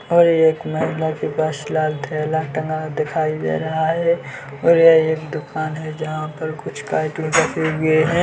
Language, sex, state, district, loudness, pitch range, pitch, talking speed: Hindi, male, Chhattisgarh, Bilaspur, -19 LUFS, 155-160 Hz, 155 Hz, 145 wpm